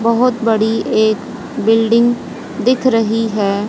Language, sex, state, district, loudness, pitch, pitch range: Hindi, female, Haryana, Jhajjar, -15 LUFS, 225 Hz, 220-235 Hz